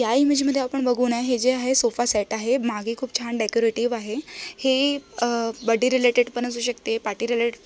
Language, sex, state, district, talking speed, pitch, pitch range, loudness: Marathi, female, Maharashtra, Solapur, 210 wpm, 240 Hz, 230-260 Hz, -23 LUFS